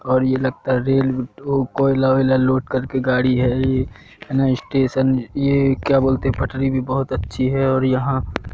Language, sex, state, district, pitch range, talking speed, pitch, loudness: Hindi, male, Madhya Pradesh, Katni, 130-135 Hz, 175 wpm, 130 Hz, -19 LUFS